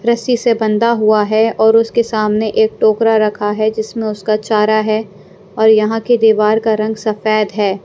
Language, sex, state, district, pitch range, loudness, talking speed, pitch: Hindi, female, Punjab, Pathankot, 215-225 Hz, -14 LUFS, 185 wpm, 220 Hz